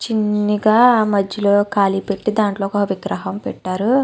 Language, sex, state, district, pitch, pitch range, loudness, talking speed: Telugu, female, Andhra Pradesh, Chittoor, 205 Hz, 195-215 Hz, -17 LUFS, 120 wpm